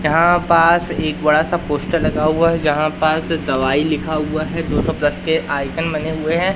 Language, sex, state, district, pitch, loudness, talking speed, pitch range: Hindi, male, Madhya Pradesh, Umaria, 155 Hz, -17 LUFS, 210 wpm, 150-165 Hz